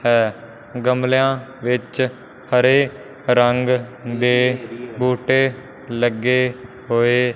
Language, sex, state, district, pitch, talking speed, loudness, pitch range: Punjabi, male, Punjab, Fazilka, 125 Hz, 75 wpm, -19 LUFS, 120-130 Hz